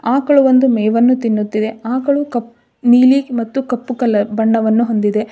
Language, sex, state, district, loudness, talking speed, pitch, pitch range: Kannada, female, Karnataka, Dharwad, -14 LUFS, 135 wpm, 235 Hz, 220-260 Hz